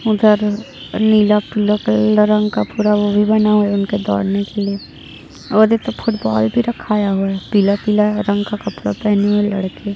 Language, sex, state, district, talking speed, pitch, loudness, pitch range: Hindi, female, Chhattisgarh, Jashpur, 175 wpm, 210 Hz, -16 LUFS, 200-210 Hz